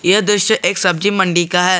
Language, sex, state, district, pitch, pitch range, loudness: Hindi, male, Jharkhand, Garhwa, 185 Hz, 180-205 Hz, -14 LUFS